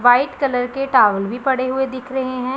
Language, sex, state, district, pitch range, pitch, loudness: Hindi, female, Punjab, Pathankot, 245-265 Hz, 255 Hz, -18 LUFS